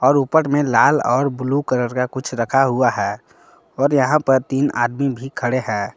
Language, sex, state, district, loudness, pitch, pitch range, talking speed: Hindi, male, Jharkhand, Palamu, -18 LUFS, 130 Hz, 125-140 Hz, 190 wpm